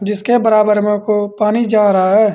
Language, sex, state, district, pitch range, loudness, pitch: Hindi, male, Uttar Pradesh, Saharanpur, 205-215 Hz, -13 LUFS, 210 Hz